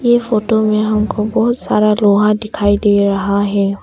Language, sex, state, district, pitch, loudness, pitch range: Hindi, female, Arunachal Pradesh, Longding, 210 Hz, -14 LUFS, 205-220 Hz